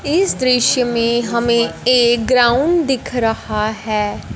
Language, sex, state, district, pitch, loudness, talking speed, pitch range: Hindi, female, Punjab, Fazilka, 240 Hz, -15 LUFS, 125 wpm, 230-255 Hz